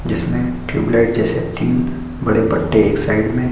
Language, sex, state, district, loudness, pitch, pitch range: Hindi, male, Chhattisgarh, Korba, -17 LUFS, 110 Hz, 85-120 Hz